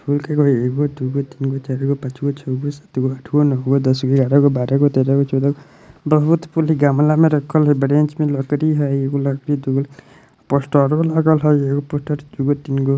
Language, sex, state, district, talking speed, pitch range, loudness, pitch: Bajjika, female, Bihar, Vaishali, 200 wpm, 135-150 Hz, -17 LUFS, 140 Hz